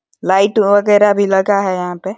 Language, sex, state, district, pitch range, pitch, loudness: Hindi, male, Uttar Pradesh, Deoria, 190-205 Hz, 200 Hz, -13 LUFS